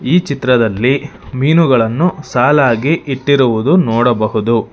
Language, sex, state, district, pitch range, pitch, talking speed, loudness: Kannada, male, Karnataka, Bangalore, 115-150 Hz, 130 Hz, 75 wpm, -13 LUFS